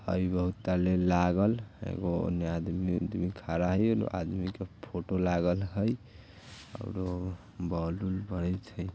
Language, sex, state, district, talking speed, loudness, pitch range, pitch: Bajjika, male, Bihar, Vaishali, 85 wpm, -31 LUFS, 90-100 Hz, 90 Hz